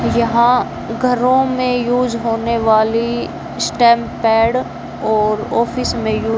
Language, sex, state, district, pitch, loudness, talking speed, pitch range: Hindi, female, Haryana, Jhajjar, 235 Hz, -16 LUFS, 115 wpm, 225-250 Hz